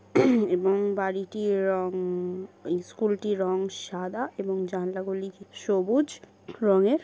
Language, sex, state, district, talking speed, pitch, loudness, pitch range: Bengali, female, West Bengal, Kolkata, 100 wpm, 195 Hz, -27 LUFS, 185-200 Hz